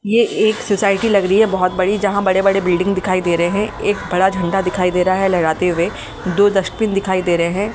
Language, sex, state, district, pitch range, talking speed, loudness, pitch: Hindi, male, Delhi, New Delhi, 180-205 Hz, 240 wpm, -16 LUFS, 195 Hz